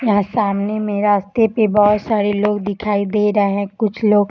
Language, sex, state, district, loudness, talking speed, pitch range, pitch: Hindi, female, Uttar Pradesh, Gorakhpur, -17 LUFS, 210 wpm, 205-215 Hz, 210 Hz